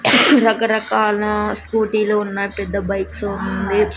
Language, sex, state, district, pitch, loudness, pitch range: Telugu, female, Andhra Pradesh, Sri Satya Sai, 210 Hz, -18 LUFS, 200-215 Hz